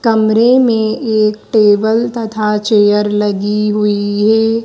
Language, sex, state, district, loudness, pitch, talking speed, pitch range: Hindi, female, Madhya Pradesh, Dhar, -12 LUFS, 215 Hz, 115 wpm, 210-225 Hz